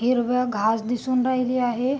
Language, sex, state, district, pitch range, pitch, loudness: Marathi, female, Maharashtra, Sindhudurg, 240-255 Hz, 250 Hz, -23 LUFS